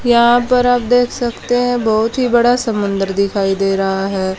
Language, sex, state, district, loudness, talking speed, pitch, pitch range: Hindi, female, Haryana, Charkhi Dadri, -15 LUFS, 190 wpm, 235 Hz, 195-245 Hz